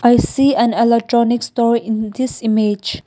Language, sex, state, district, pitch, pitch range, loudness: English, female, Nagaland, Kohima, 235 Hz, 220-240 Hz, -16 LUFS